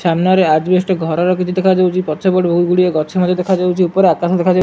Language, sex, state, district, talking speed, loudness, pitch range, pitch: Odia, male, Odisha, Malkangiri, 180 wpm, -14 LUFS, 175-185 Hz, 180 Hz